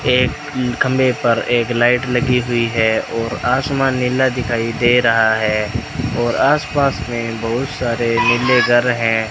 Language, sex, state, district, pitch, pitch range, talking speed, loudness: Hindi, male, Rajasthan, Bikaner, 120 Hz, 115-125 Hz, 150 wpm, -16 LUFS